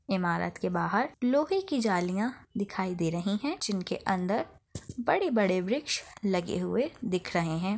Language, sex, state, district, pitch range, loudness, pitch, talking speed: Hindi, female, Chhattisgarh, Bastar, 185-240 Hz, -30 LUFS, 200 Hz, 155 wpm